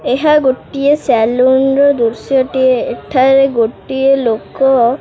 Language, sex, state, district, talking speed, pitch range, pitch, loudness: Odia, male, Odisha, Khordha, 95 wpm, 240-270 Hz, 260 Hz, -12 LUFS